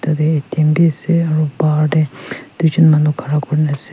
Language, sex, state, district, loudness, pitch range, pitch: Nagamese, female, Nagaland, Kohima, -15 LUFS, 150-155 Hz, 155 Hz